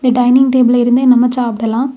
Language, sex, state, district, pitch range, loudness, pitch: Tamil, female, Tamil Nadu, Kanyakumari, 245-255 Hz, -11 LUFS, 250 Hz